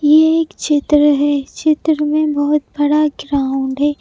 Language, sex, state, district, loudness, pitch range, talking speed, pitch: Hindi, male, Madhya Pradesh, Bhopal, -15 LUFS, 290-305 Hz, 150 wpm, 295 Hz